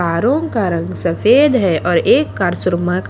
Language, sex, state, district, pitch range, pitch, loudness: Hindi, female, Haryana, Charkhi Dadri, 175-275 Hz, 185 Hz, -15 LUFS